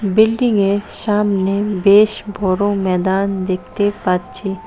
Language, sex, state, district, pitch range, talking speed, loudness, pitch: Bengali, female, West Bengal, Cooch Behar, 190-210 Hz, 90 wpm, -16 LUFS, 200 Hz